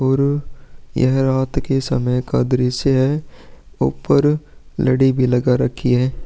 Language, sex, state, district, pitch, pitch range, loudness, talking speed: Hindi, male, Chhattisgarh, Korba, 130 Hz, 125-135 Hz, -18 LUFS, 115 wpm